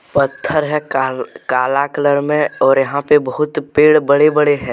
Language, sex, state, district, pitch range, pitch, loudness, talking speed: Hindi, male, Jharkhand, Deoghar, 135-150 Hz, 145 Hz, -15 LUFS, 175 wpm